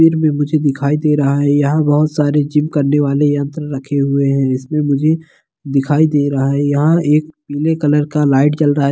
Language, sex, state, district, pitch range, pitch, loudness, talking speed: Hindi, male, Bihar, Begusarai, 140-150 Hz, 145 Hz, -14 LUFS, 215 wpm